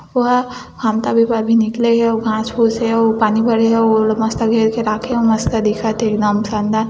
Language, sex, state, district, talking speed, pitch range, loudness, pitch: Hindi, female, Chhattisgarh, Bilaspur, 245 wpm, 220-230 Hz, -16 LUFS, 225 Hz